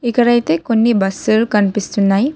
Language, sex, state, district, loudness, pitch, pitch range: Telugu, female, Telangana, Hyderabad, -15 LUFS, 230 Hz, 205-240 Hz